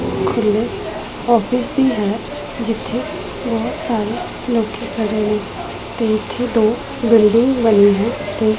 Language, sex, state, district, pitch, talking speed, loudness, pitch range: Punjabi, female, Punjab, Pathankot, 225 Hz, 110 wpm, -18 LUFS, 215-235 Hz